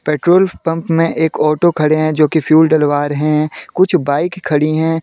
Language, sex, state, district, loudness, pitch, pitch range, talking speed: Hindi, male, Jharkhand, Deoghar, -14 LUFS, 155 Hz, 150-165 Hz, 205 wpm